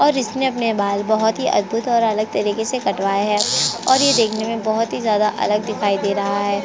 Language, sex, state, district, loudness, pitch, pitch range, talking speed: Hindi, female, Chhattisgarh, Korba, -18 LUFS, 220 Hz, 205-230 Hz, 225 wpm